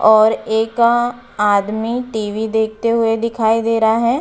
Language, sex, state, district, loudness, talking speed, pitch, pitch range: Hindi, female, Uttar Pradesh, Budaun, -16 LUFS, 140 wpm, 225 Hz, 220-235 Hz